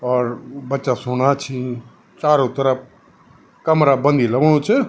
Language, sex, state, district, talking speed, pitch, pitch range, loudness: Garhwali, male, Uttarakhand, Tehri Garhwal, 135 wpm, 135 Hz, 125-150 Hz, -18 LUFS